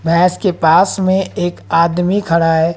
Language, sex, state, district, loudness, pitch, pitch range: Hindi, female, Haryana, Jhajjar, -14 LUFS, 175 Hz, 165-185 Hz